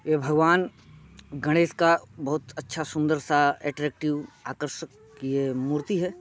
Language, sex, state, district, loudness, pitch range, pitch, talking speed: Hindi, male, Bihar, Muzaffarpur, -26 LUFS, 145-165 Hz, 150 Hz, 125 wpm